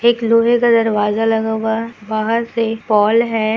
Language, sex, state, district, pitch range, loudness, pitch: Hindi, female, Bihar, Kishanganj, 220-230 Hz, -16 LUFS, 225 Hz